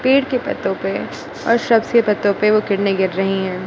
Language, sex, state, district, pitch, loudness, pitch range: Hindi, female, Gujarat, Gandhinagar, 210 Hz, -17 LUFS, 195-235 Hz